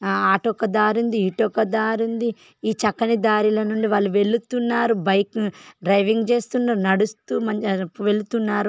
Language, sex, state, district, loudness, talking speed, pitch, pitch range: Telugu, female, Telangana, Karimnagar, -21 LUFS, 130 wpm, 215 Hz, 205-230 Hz